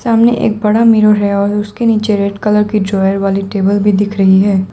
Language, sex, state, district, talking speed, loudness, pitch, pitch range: Hindi, female, Assam, Sonitpur, 230 wpm, -12 LUFS, 205 Hz, 200-215 Hz